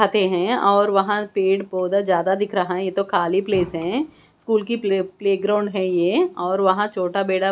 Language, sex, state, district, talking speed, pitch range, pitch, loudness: Hindi, female, Bihar, West Champaran, 190 wpm, 185-205 Hz, 195 Hz, -20 LUFS